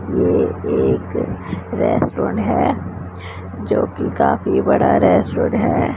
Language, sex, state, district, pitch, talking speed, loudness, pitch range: Hindi, female, Punjab, Pathankot, 90 Hz, 90 wpm, -17 LUFS, 90-95 Hz